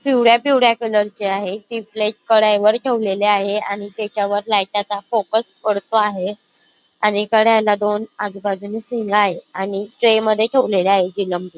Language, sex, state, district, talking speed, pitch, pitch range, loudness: Marathi, female, Maharashtra, Dhule, 150 wpm, 210 Hz, 200-220 Hz, -18 LUFS